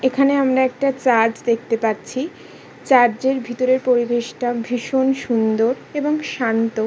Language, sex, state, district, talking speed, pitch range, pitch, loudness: Bengali, female, West Bengal, Kolkata, 115 wpm, 230-265 Hz, 245 Hz, -19 LUFS